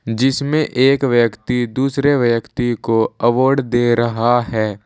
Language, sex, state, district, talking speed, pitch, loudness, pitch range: Hindi, male, Uttar Pradesh, Saharanpur, 125 wpm, 120 Hz, -16 LUFS, 115-135 Hz